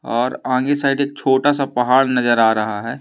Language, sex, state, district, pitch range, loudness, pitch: Hindi, male, Madhya Pradesh, Umaria, 120-140 Hz, -17 LUFS, 130 Hz